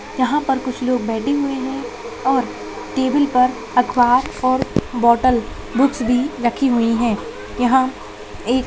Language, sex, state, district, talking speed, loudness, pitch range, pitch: Hindi, female, Chhattisgarh, Rajnandgaon, 130 wpm, -18 LUFS, 245-265 Hz, 255 Hz